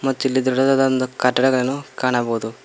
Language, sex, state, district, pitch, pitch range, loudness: Kannada, male, Karnataka, Koppal, 130 Hz, 125-135 Hz, -19 LUFS